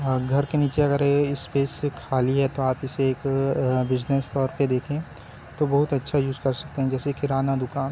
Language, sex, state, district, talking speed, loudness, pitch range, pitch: Hindi, male, Chhattisgarh, Bilaspur, 210 wpm, -24 LUFS, 130-140 Hz, 135 Hz